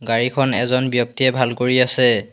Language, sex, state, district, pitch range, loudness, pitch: Assamese, male, Assam, Hailakandi, 120-130 Hz, -17 LUFS, 125 Hz